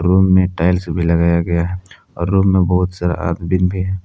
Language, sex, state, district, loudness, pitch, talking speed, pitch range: Hindi, male, Jharkhand, Palamu, -16 LUFS, 90 Hz, 225 wpm, 85-95 Hz